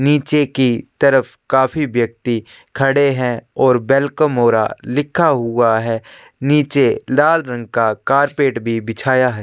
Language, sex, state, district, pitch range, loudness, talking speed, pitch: Hindi, male, Chhattisgarh, Korba, 115-140 Hz, -16 LUFS, 135 wpm, 130 Hz